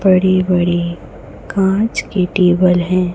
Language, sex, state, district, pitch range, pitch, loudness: Hindi, female, Chhattisgarh, Raipur, 175-190 Hz, 185 Hz, -15 LUFS